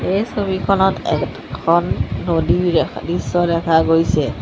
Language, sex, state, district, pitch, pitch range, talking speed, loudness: Assamese, female, Assam, Sonitpur, 170 Hz, 165-190 Hz, 95 wpm, -18 LUFS